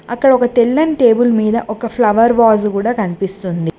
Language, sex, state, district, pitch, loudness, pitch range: Telugu, female, Telangana, Mahabubabad, 230 Hz, -13 LUFS, 210-240 Hz